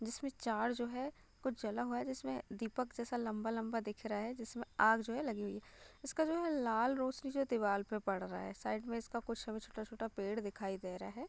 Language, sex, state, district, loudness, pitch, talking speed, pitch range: Hindi, female, Bihar, Gopalganj, -40 LUFS, 225 Hz, 250 wpm, 210-245 Hz